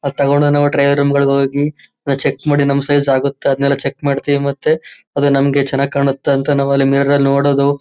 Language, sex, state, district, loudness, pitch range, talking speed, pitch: Kannada, male, Karnataka, Chamarajanagar, -14 LUFS, 140-145 Hz, 200 wpm, 140 Hz